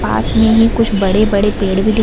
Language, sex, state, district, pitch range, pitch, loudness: Hindi, female, Bihar, Gaya, 195-225 Hz, 210 Hz, -13 LUFS